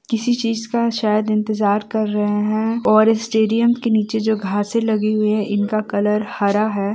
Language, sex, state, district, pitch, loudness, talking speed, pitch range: Hindi, female, Bihar, East Champaran, 215 Hz, -18 LUFS, 180 wpm, 210-225 Hz